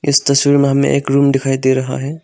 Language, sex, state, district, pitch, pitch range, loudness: Hindi, male, Arunachal Pradesh, Longding, 140 Hz, 135-140 Hz, -14 LUFS